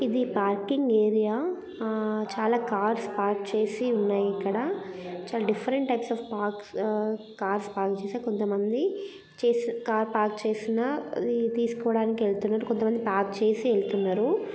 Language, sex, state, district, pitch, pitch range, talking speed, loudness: Telugu, female, Andhra Pradesh, Guntur, 220 Hz, 205-235 Hz, 125 wpm, -28 LUFS